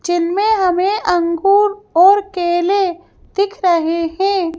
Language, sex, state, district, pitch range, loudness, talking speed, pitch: Hindi, female, Madhya Pradesh, Bhopal, 345-400 Hz, -15 LUFS, 105 wpm, 370 Hz